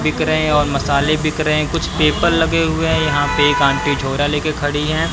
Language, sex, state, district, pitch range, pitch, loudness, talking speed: Hindi, male, Haryana, Jhajjar, 145-160 Hz, 150 Hz, -16 LUFS, 210 wpm